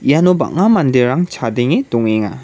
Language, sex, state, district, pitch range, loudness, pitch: Garo, male, Meghalaya, West Garo Hills, 115-175 Hz, -14 LUFS, 130 Hz